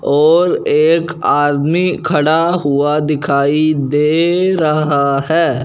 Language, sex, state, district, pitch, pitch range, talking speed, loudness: Hindi, male, Punjab, Fazilka, 155 Hz, 145-165 Hz, 95 wpm, -13 LUFS